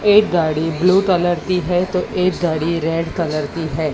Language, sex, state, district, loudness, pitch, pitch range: Hindi, female, Maharashtra, Mumbai Suburban, -18 LUFS, 170 Hz, 160-180 Hz